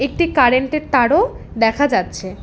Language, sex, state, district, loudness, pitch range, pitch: Bengali, female, West Bengal, Alipurduar, -16 LUFS, 245-305 Hz, 270 Hz